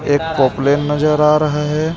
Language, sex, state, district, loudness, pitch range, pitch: Hindi, male, Jharkhand, Ranchi, -15 LUFS, 145-155 Hz, 150 Hz